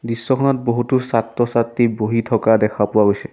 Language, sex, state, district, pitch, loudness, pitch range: Assamese, male, Assam, Sonitpur, 115 Hz, -18 LUFS, 110-125 Hz